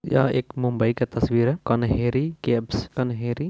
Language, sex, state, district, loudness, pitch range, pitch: Hindi, male, Bihar, Purnia, -24 LUFS, 120-130 Hz, 125 Hz